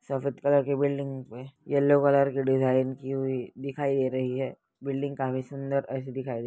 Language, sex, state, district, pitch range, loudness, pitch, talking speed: Hindi, male, West Bengal, Malda, 130-140 Hz, -27 LUFS, 135 Hz, 175 wpm